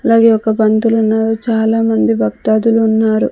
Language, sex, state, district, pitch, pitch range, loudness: Telugu, female, Andhra Pradesh, Sri Satya Sai, 220 Hz, 220-225 Hz, -13 LUFS